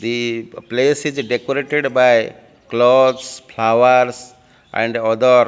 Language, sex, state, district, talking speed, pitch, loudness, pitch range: English, male, Odisha, Malkangiri, 110 wpm, 125 Hz, -16 LUFS, 120-130 Hz